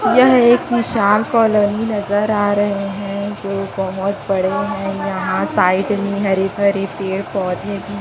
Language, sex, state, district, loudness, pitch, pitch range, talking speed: Hindi, female, Chhattisgarh, Raipur, -17 LUFS, 200 Hz, 195-210 Hz, 150 wpm